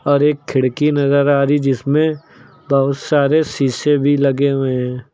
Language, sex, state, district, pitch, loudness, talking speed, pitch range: Hindi, male, Uttar Pradesh, Lucknow, 140 Hz, -16 LUFS, 175 wpm, 135-145 Hz